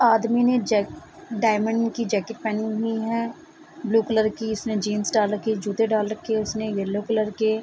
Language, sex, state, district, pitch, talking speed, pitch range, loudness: Hindi, female, Bihar, Bhagalpur, 220 Hz, 210 wpm, 215-230 Hz, -24 LUFS